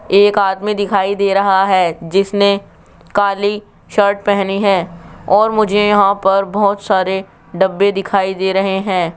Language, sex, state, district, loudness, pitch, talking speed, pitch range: Hindi, male, Rajasthan, Jaipur, -14 LUFS, 195 Hz, 145 wpm, 190-205 Hz